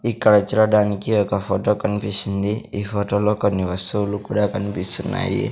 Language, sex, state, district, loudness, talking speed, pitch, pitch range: Telugu, male, Andhra Pradesh, Sri Satya Sai, -20 LUFS, 130 wpm, 100 Hz, 100-105 Hz